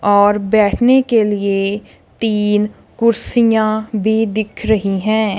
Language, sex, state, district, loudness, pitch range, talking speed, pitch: Hindi, female, Punjab, Kapurthala, -15 LUFS, 205-220 Hz, 110 wpm, 215 Hz